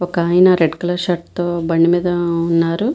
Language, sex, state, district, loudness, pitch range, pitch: Telugu, female, Andhra Pradesh, Visakhapatnam, -16 LUFS, 170-180 Hz, 175 Hz